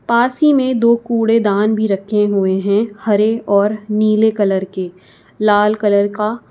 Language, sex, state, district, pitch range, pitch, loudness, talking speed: Hindi, female, Uttar Pradesh, Lucknow, 200-225 Hz, 210 Hz, -15 LUFS, 155 wpm